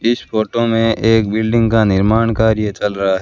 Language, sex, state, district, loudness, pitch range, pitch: Hindi, male, Rajasthan, Bikaner, -15 LUFS, 105-115 Hz, 110 Hz